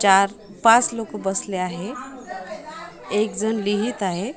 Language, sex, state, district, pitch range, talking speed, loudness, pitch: Marathi, female, Maharashtra, Washim, 195-240 Hz, 125 wpm, -21 LUFS, 210 Hz